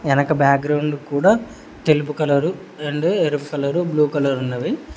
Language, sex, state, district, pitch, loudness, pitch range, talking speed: Telugu, male, Telangana, Hyderabad, 150 Hz, -19 LUFS, 140-155 Hz, 135 wpm